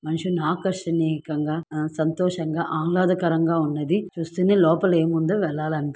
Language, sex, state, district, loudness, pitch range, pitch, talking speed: Telugu, female, Andhra Pradesh, Guntur, -23 LUFS, 155-180 Hz, 165 Hz, 100 wpm